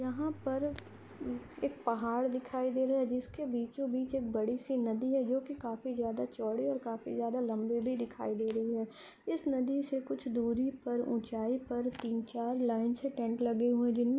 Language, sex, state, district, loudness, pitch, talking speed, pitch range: Hindi, female, Andhra Pradesh, Anantapur, -35 LUFS, 245 Hz, 185 wpm, 235-265 Hz